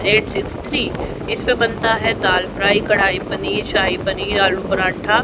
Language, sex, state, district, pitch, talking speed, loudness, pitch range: Hindi, female, Haryana, Rohtak, 200 Hz, 125 wpm, -18 LUFS, 190-225 Hz